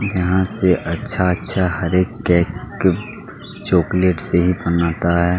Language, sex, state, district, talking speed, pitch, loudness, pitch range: Hindi, male, Chhattisgarh, Kabirdham, 110 wpm, 90 Hz, -18 LUFS, 85-95 Hz